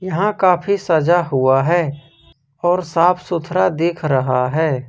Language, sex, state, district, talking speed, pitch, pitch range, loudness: Hindi, male, Jharkhand, Ranchi, 135 wpm, 170 Hz, 140-180 Hz, -17 LUFS